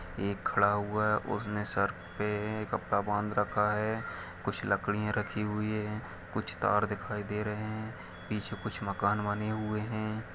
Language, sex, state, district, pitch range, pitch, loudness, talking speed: Hindi, male, Chhattisgarh, Kabirdham, 100-105 Hz, 105 Hz, -32 LUFS, 160 wpm